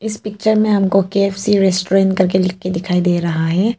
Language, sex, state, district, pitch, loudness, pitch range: Hindi, female, Arunachal Pradesh, Papum Pare, 195 Hz, -16 LUFS, 185-210 Hz